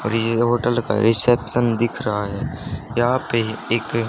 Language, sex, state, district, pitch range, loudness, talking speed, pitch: Hindi, male, Haryana, Rohtak, 110-120 Hz, -19 LUFS, 160 wpm, 115 Hz